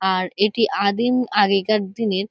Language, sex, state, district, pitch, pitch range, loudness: Bengali, female, West Bengal, Kolkata, 205 Hz, 195-220 Hz, -20 LUFS